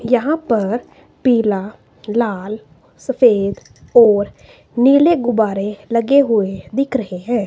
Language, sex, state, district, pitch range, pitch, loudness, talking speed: Hindi, female, Himachal Pradesh, Shimla, 205-250 Hz, 230 Hz, -16 LUFS, 105 wpm